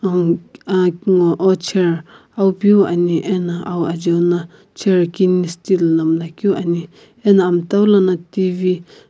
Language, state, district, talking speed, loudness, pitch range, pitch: Sumi, Nagaland, Kohima, 130 wpm, -16 LUFS, 170-195 Hz, 180 Hz